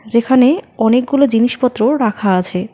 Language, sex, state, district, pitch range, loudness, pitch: Bengali, female, West Bengal, Alipurduar, 220-260 Hz, -14 LUFS, 235 Hz